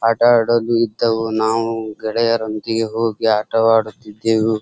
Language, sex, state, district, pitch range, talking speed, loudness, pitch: Kannada, male, Karnataka, Dharwad, 110-115 Hz, 105 wpm, -17 LUFS, 115 Hz